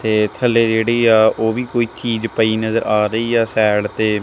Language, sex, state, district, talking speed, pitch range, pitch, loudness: Punjabi, male, Punjab, Kapurthala, 215 wpm, 110-115 Hz, 110 Hz, -16 LUFS